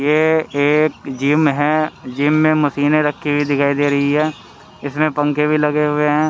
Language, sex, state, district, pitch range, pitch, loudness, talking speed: Hindi, male, Haryana, Rohtak, 145-155 Hz, 150 Hz, -16 LUFS, 180 wpm